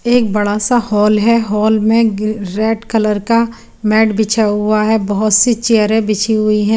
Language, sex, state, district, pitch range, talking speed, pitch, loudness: Hindi, female, Chandigarh, Chandigarh, 210-225 Hz, 175 wpm, 215 Hz, -13 LUFS